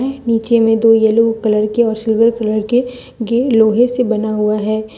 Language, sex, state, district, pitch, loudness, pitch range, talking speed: Hindi, female, Jharkhand, Deoghar, 225 Hz, -14 LUFS, 220-235 Hz, 190 wpm